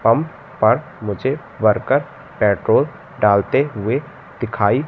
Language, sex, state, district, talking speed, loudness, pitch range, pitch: Hindi, male, Madhya Pradesh, Katni, 100 wpm, -19 LUFS, 105-150 Hz, 115 Hz